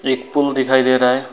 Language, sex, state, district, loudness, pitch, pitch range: Hindi, male, West Bengal, Alipurduar, -16 LUFS, 130 Hz, 130-135 Hz